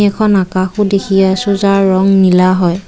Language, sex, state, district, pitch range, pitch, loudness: Assamese, female, Assam, Kamrup Metropolitan, 185-200 Hz, 195 Hz, -11 LUFS